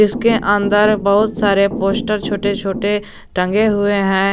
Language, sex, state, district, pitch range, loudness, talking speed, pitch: Hindi, male, Jharkhand, Garhwa, 200-210 Hz, -16 LUFS, 140 wpm, 205 Hz